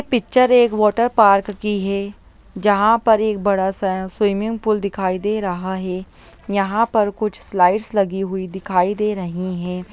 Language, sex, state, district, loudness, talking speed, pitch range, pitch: Hindi, female, Bihar, Jahanabad, -18 LUFS, 170 wpm, 190-215 Hz, 200 Hz